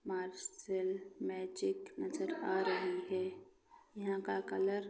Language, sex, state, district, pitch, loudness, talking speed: Hindi, female, Bihar, Gopalganj, 195 Hz, -39 LUFS, 120 wpm